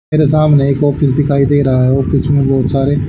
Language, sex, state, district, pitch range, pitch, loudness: Hindi, male, Haryana, Charkhi Dadri, 135-145 Hz, 140 Hz, -12 LUFS